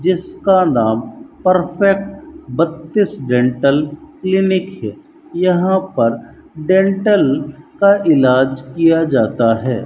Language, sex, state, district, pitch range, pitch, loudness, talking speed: Hindi, female, Rajasthan, Bikaner, 135-190 Hz, 165 Hz, -15 LUFS, 90 wpm